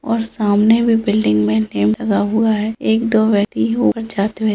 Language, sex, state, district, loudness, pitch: Hindi, female, Andhra Pradesh, Anantapur, -16 LUFS, 210 Hz